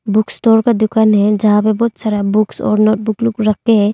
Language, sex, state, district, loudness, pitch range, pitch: Hindi, female, Arunachal Pradesh, Longding, -13 LUFS, 210-225 Hz, 215 Hz